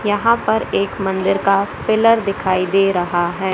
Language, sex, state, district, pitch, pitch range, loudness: Hindi, male, Madhya Pradesh, Katni, 195 Hz, 190-210 Hz, -17 LUFS